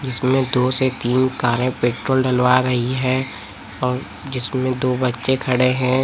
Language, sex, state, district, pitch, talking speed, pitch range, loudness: Hindi, male, Chhattisgarh, Raipur, 130 Hz, 150 wpm, 125-130 Hz, -19 LUFS